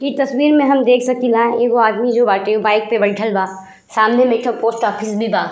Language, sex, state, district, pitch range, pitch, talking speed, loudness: Bhojpuri, female, Uttar Pradesh, Ghazipur, 210-250 Hz, 230 Hz, 240 wpm, -15 LUFS